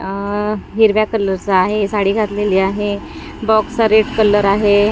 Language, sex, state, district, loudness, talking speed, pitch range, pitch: Marathi, female, Maharashtra, Gondia, -15 LUFS, 145 wpm, 200-215 Hz, 205 Hz